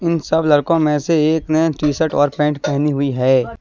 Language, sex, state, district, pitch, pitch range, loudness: Hindi, male, Jharkhand, Deoghar, 150 Hz, 145-160 Hz, -16 LUFS